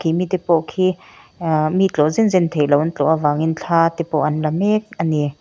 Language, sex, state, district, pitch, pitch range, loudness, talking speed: Mizo, female, Mizoram, Aizawl, 160 Hz, 155-185 Hz, -18 LUFS, 235 wpm